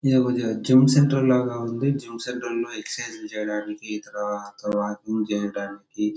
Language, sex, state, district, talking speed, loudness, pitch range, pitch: Telugu, male, Andhra Pradesh, Chittoor, 115 wpm, -24 LUFS, 105-125 Hz, 115 Hz